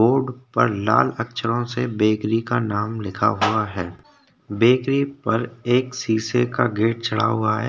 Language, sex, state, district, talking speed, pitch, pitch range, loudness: Hindi, male, Maharashtra, Chandrapur, 155 wpm, 115 Hz, 110-125 Hz, -21 LUFS